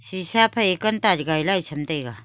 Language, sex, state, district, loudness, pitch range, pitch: Wancho, female, Arunachal Pradesh, Longding, -20 LUFS, 155-215 Hz, 185 Hz